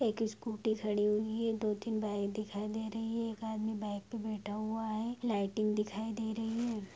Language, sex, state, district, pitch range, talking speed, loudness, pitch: Hindi, female, Jharkhand, Sahebganj, 210-225 Hz, 205 wpm, -36 LUFS, 220 Hz